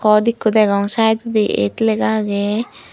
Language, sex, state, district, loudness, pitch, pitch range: Chakma, female, Tripura, Unakoti, -17 LUFS, 215 Hz, 205-220 Hz